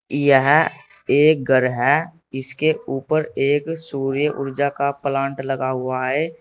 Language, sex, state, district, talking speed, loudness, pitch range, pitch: Hindi, male, Uttar Pradesh, Saharanpur, 130 wpm, -19 LUFS, 135-155 Hz, 140 Hz